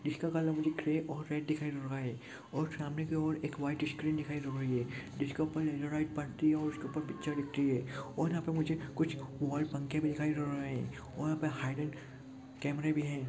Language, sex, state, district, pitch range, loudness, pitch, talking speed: Hindi, male, Chhattisgarh, Jashpur, 140-155 Hz, -36 LUFS, 150 Hz, 215 wpm